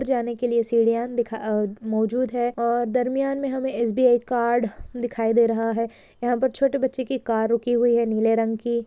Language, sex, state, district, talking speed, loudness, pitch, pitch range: Hindi, female, Maharashtra, Pune, 180 wpm, -23 LUFS, 235 Hz, 230-250 Hz